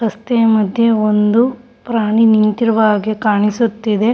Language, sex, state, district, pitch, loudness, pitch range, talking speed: Kannada, female, Karnataka, Shimoga, 220 Hz, -14 LUFS, 215-230 Hz, 100 wpm